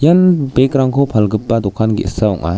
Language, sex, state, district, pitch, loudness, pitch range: Garo, male, Meghalaya, West Garo Hills, 115 Hz, -14 LUFS, 105-140 Hz